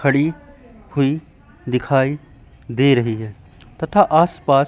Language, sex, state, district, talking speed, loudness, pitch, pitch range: Hindi, male, Madhya Pradesh, Katni, 105 wpm, -18 LUFS, 140 Hz, 120-155 Hz